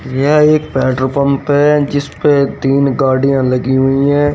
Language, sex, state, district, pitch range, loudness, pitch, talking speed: Hindi, male, Haryana, Rohtak, 135-145 Hz, -12 LUFS, 140 Hz, 165 wpm